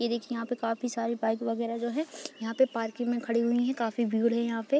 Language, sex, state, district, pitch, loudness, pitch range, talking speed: Hindi, female, Uttar Pradesh, Deoria, 235 Hz, -30 LUFS, 230-240 Hz, 275 wpm